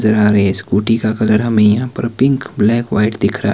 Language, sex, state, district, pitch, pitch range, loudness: Hindi, male, Himachal Pradesh, Shimla, 110 Hz, 105-115 Hz, -14 LUFS